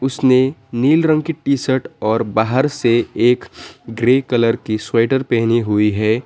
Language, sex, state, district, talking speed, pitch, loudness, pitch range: Hindi, male, West Bengal, Alipurduar, 155 wpm, 120 Hz, -16 LUFS, 115-135 Hz